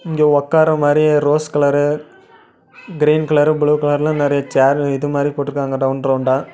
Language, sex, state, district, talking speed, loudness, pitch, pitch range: Tamil, male, Tamil Nadu, Namakkal, 155 wpm, -15 LUFS, 145 Hz, 140-150 Hz